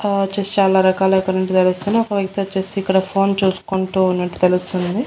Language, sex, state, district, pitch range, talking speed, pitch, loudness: Telugu, female, Andhra Pradesh, Annamaya, 185-195 Hz, 140 wpm, 190 Hz, -17 LUFS